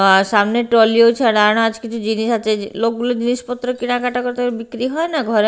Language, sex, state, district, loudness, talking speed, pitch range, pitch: Bengali, female, Bihar, Katihar, -17 LUFS, 210 wpm, 220-245 Hz, 230 Hz